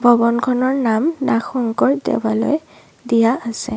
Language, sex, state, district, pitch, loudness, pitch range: Assamese, female, Assam, Sonitpur, 240 Hz, -18 LUFS, 230-270 Hz